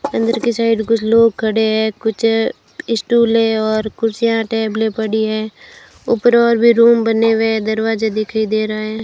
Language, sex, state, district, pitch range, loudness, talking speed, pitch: Hindi, female, Rajasthan, Bikaner, 220-230 Hz, -15 LUFS, 175 wpm, 225 Hz